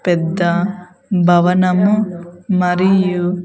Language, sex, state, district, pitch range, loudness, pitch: Telugu, female, Andhra Pradesh, Sri Satya Sai, 175-185 Hz, -15 LUFS, 180 Hz